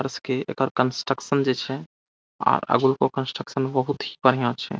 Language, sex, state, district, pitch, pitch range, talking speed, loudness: Maithili, male, Bihar, Saharsa, 135 Hz, 130-135 Hz, 150 wpm, -24 LUFS